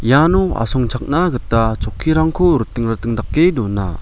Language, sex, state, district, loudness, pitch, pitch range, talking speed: Garo, male, Meghalaya, West Garo Hills, -16 LUFS, 125 Hz, 115-160 Hz, 120 wpm